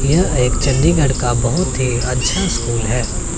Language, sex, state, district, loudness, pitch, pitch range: Hindi, male, Chandigarh, Chandigarh, -16 LUFS, 125 Hz, 120-135 Hz